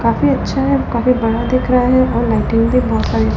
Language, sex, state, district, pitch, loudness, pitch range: Hindi, female, Delhi, New Delhi, 240 Hz, -15 LUFS, 225-255 Hz